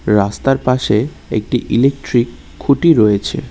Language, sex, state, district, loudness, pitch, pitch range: Bengali, male, West Bengal, Cooch Behar, -15 LUFS, 125 Hz, 105-135 Hz